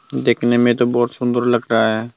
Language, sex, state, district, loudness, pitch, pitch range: Hindi, male, Tripura, Dhalai, -17 LUFS, 120 Hz, 115-120 Hz